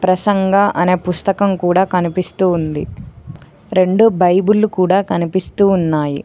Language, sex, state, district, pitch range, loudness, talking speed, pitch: Telugu, female, Telangana, Mahabubabad, 170-195 Hz, -15 LUFS, 105 wpm, 185 Hz